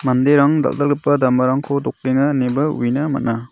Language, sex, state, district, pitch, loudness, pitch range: Garo, male, Meghalaya, South Garo Hills, 135 Hz, -17 LUFS, 130-145 Hz